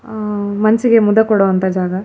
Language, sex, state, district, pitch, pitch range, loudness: Kannada, female, Karnataka, Shimoga, 210 Hz, 190-220 Hz, -14 LUFS